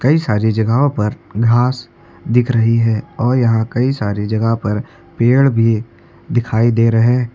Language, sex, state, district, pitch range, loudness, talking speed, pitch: Hindi, male, Uttar Pradesh, Lucknow, 110-125 Hz, -15 LUFS, 155 wpm, 115 Hz